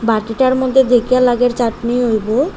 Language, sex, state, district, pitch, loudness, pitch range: Bengali, female, Assam, Hailakandi, 245 Hz, -14 LUFS, 230-255 Hz